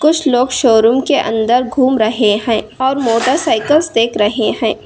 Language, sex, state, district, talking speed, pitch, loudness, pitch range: Hindi, female, Karnataka, Bangalore, 160 wpm, 245 Hz, -13 LUFS, 225-265 Hz